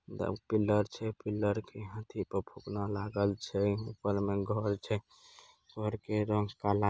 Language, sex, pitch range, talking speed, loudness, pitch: Angika, male, 100-110 Hz, 155 wpm, -34 LUFS, 105 Hz